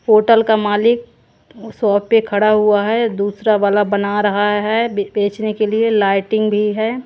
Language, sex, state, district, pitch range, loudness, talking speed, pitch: Hindi, female, Haryana, Jhajjar, 205-220 Hz, -15 LUFS, 160 wpm, 210 Hz